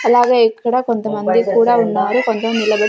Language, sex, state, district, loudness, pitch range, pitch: Telugu, female, Andhra Pradesh, Sri Satya Sai, -15 LUFS, 215-240 Hz, 230 Hz